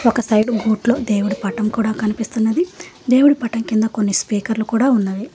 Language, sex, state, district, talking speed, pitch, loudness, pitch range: Telugu, female, Telangana, Hyderabad, 155 wpm, 225 Hz, -18 LUFS, 215-240 Hz